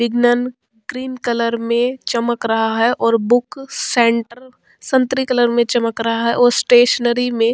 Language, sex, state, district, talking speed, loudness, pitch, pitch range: Hindi, female, Bihar, Vaishali, 160 wpm, -16 LUFS, 240 Hz, 230-245 Hz